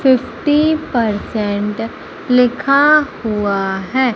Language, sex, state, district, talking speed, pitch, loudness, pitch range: Hindi, female, Madhya Pradesh, Umaria, 70 wpm, 245 Hz, -15 LUFS, 210-280 Hz